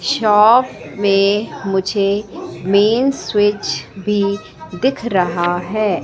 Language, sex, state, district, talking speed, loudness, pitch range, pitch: Hindi, female, Madhya Pradesh, Katni, 90 wpm, -16 LUFS, 190-215 Hz, 205 Hz